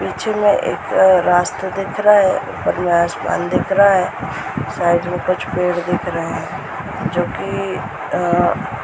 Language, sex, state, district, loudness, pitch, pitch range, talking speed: Hindi, female, Bihar, Muzaffarpur, -17 LUFS, 180 Hz, 175-195 Hz, 170 wpm